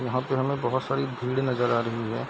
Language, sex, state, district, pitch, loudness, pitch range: Hindi, male, Bihar, Darbhanga, 125 Hz, -27 LUFS, 120-130 Hz